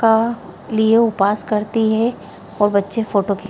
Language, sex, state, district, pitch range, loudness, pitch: Hindi, female, Bihar, Jahanabad, 205-225 Hz, -18 LUFS, 220 Hz